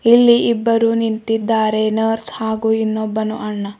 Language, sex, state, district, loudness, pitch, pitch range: Kannada, female, Karnataka, Bidar, -17 LUFS, 220 Hz, 215-230 Hz